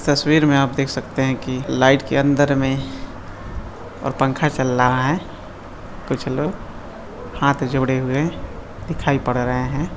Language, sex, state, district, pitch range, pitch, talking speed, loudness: Hindi, male, Bihar, Madhepura, 125-140 Hz, 135 Hz, 155 wpm, -19 LUFS